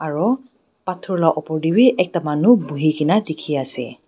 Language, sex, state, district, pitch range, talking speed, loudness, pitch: Nagamese, female, Nagaland, Dimapur, 155-215 Hz, 175 wpm, -19 LUFS, 170 Hz